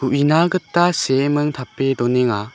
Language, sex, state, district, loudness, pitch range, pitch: Garo, male, Meghalaya, South Garo Hills, -18 LUFS, 125-155 Hz, 135 Hz